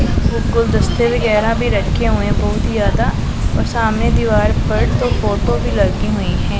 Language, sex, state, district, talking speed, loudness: Hindi, female, Punjab, Pathankot, 175 wpm, -16 LUFS